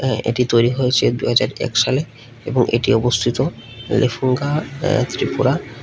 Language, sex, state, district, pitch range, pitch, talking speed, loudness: Bengali, male, Tripura, West Tripura, 115-130 Hz, 125 Hz, 125 wpm, -18 LUFS